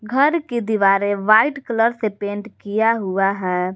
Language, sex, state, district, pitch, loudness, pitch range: Hindi, female, Jharkhand, Garhwa, 215 Hz, -19 LUFS, 200-230 Hz